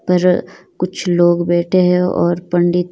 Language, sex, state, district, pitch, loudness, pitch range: Hindi, female, Himachal Pradesh, Shimla, 180 Hz, -15 LUFS, 175-180 Hz